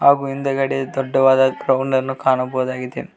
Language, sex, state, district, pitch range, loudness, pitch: Kannada, male, Karnataka, Koppal, 130-135 Hz, -18 LUFS, 135 Hz